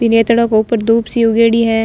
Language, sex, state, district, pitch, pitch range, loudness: Marwari, female, Rajasthan, Nagaur, 230 Hz, 225-230 Hz, -12 LUFS